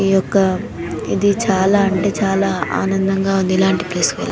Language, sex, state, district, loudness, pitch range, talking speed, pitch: Telugu, female, Telangana, Nalgonda, -17 LUFS, 185-195 Hz, 165 wpm, 195 Hz